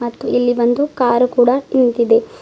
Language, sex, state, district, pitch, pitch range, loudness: Kannada, female, Karnataka, Bidar, 245 Hz, 240-275 Hz, -15 LUFS